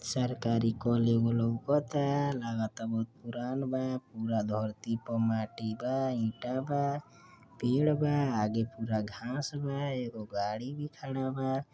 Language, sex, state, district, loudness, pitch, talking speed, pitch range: Bhojpuri, male, Uttar Pradesh, Deoria, -32 LUFS, 120 Hz, 135 wpm, 115-135 Hz